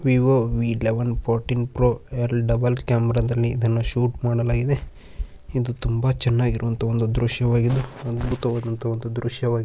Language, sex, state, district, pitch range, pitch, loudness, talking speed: Kannada, male, Karnataka, Bijapur, 115-125 Hz, 120 Hz, -23 LUFS, 110 wpm